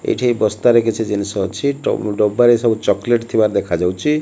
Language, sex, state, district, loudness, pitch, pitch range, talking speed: Odia, male, Odisha, Malkangiri, -16 LUFS, 110 Hz, 100-120 Hz, 155 wpm